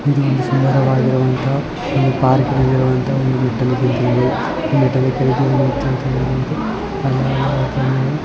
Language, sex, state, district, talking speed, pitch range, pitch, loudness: Kannada, male, Karnataka, Belgaum, 75 wpm, 130-140 Hz, 130 Hz, -16 LUFS